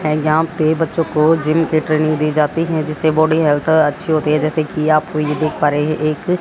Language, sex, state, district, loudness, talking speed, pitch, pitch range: Hindi, female, Haryana, Jhajjar, -16 LUFS, 235 wpm, 155 Hz, 155-160 Hz